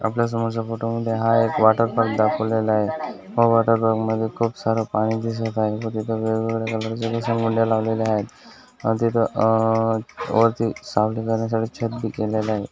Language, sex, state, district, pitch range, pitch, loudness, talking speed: Marathi, male, Maharashtra, Dhule, 110-115 Hz, 115 Hz, -22 LUFS, 170 wpm